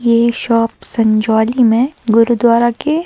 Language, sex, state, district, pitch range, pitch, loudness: Hindi, female, Himachal Pradesh, Shimla, 225-240 Hz, 230 Hz, -13 LUFS